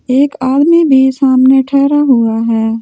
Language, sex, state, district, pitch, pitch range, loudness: Hindi, female, Delhi, New Delhi, 265 Hz, 255-280 Hz, -10 LUFS